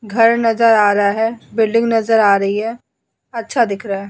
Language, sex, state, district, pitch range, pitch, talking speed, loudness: Hindi, female, Uttar Pradesh, Hamirpur, 205-230 Hz, 225 Hz, 205 wpm, -15 LUFS